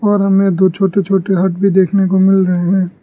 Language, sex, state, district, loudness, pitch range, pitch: Hindi, male, Arunachal Pradesh, Lower Dibang Valley, -13 LUFS, 185-195 Hz, 190 Hz